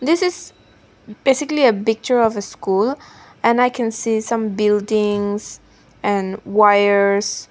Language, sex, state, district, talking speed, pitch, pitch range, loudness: English, female, Nagaland, Dimapur, 135 wpm, 220 Hz, 205-250 Hz, -18 LUFS